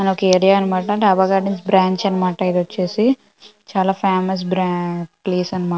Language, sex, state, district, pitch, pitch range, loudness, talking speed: Telugu, female, Andhra Pradesh, Visakhapatnam, 190 Hz, 180-195 Hz, -18 LUFS, 155 wpm